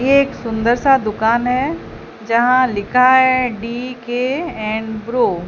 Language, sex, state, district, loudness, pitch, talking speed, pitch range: Hindi, female, Odisha, Sambalpur, -16 LUFS, 245 Hz, 100 wpm, 225-255 Hz